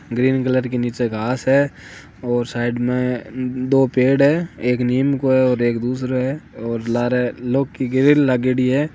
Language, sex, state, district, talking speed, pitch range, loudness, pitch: Hindi, male, Rajasthan, Nagaur, 180 wpm, 120-135 Hz, -19 LUFS, 125 Hz